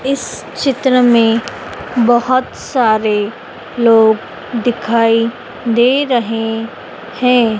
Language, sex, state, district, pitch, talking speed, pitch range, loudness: Hindi, female, Madhya Pradesh, Dhar, 235 Hz, 80 wpm, 225-250 Hz, -14 LUFS